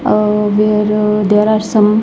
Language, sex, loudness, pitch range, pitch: English, female, -12 LUFS, 210-215 Hz, 210 Hz